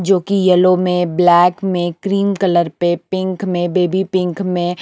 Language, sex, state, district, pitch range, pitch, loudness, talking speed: Hindi, female, Punjab, Kapurthala, 175-190 Hz, 180 Hz, -15 LUFS, 175 wpm